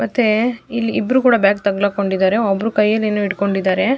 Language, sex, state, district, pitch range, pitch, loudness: Kannada, female, Karnataka, Mysore, 200-230 Hz, 210 Hz, -17 LUFS